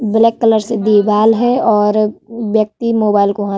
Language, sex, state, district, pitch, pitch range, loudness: Hindi, female, Uttar Pradesh, Varanasi, 215 Hz, 210-230 Hz, -13 LUFS